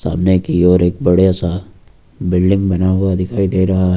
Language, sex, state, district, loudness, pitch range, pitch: Hindi, male, Uttar Pradesh, Lucknow, -14 LUFS, 90-95 Hz, 95 Hz